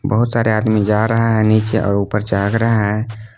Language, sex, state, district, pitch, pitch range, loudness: Hindi, male, Jharkhand, Palamu, 110 Hz, 105-115 Hz, -16 LUFS